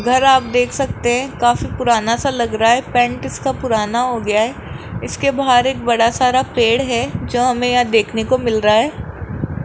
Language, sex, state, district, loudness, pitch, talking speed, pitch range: Hindi, male, Rajasthan, Jaipur, -16 LUFS, 245 Hz, 200 wpm, 230-255 Hz